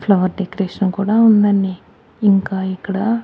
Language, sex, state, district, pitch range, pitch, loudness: Telugu, male, Andhra Pradesh, Annamaya, 190-210 Hz, 195 Hz, -16 LUFS